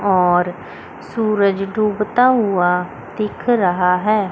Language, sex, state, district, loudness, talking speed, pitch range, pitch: Hindi, female, Chandigarh, Chandigarh, -17 LUFS, 95 wpm, 180-215 Hz, 200 Hz